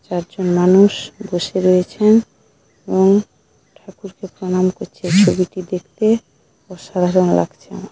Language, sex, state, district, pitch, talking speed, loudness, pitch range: Bengali, female, West Bengal, Paschim Medinipur, 185 Hz, 105 wpm, -16 LUFS, 180-195 Hz